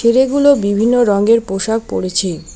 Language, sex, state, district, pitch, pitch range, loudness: Bengali, female, West Bengal, Alipurduar, 225 Hz, 195-240 Hz, -14 LUFS